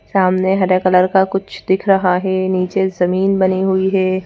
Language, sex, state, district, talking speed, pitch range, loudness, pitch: Hindi, female, Madhya Pradesh, Bhopal, 185 wpm, 185-190 Hz, -15 LUFS, 190 Hz